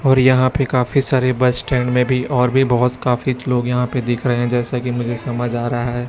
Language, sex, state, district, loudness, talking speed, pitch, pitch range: Hindi, male, Chhattisgarh, Raipur, -17 LUFS, 255 wpm, 125 Hz, 120-130 Hz